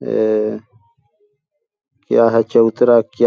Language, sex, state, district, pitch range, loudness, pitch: Hindi, male, Chhattisgarh, Balrampur, 115-140 Hz, -15 LUFS, 120 Hz